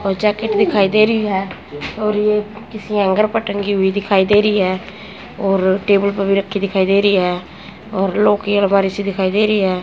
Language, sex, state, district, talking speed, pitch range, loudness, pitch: Hindi, female, Haryana, Jhajjar, 195 wpm, 195-210 Hz, -16 LUFS, 200 Hz